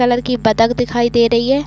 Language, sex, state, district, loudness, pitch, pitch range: Hindi, female, Chhattisgarh, Raigarh, -15 LUFS, 240 Hz, 235-245 Hz